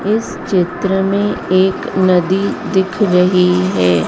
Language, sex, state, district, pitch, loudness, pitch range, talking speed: Hindi, female, Madhya Pradesh, Dhar, 185 Hz, -14 LUFS, 180-195 Hz, 120 wpm